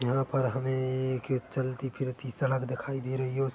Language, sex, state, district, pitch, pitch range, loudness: Hindi, male, Chhattisgarh, Bilaspur, 130 Hz, 130-135 Hz, -31 LUFS